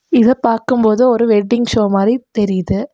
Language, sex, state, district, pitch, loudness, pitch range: Tamil, female, Tamil Nadu, Nilgiris, 230 Hz, -14 LUFS, 215-245 Hz